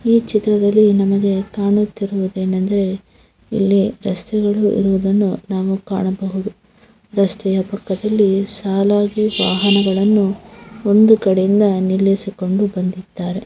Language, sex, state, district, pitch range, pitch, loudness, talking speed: Kannada, female, Karnataka, Mysore, 190-210 Hz, 200 Hz, -16 LUFS, 90 wpm